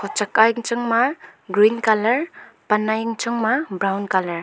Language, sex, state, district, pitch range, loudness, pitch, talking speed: Wancho, female, Arunachal Pradesh, Longding, 205-235 Hz, -20 LUFS, 220 Hz, 190 wpm